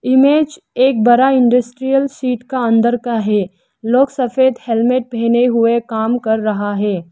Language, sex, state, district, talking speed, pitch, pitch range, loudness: Hindi, female, Arunachal Pradesh, Lower Dibang Valley, 150 wpm, 240 Hz, 225-260 Hz, -15 LUFS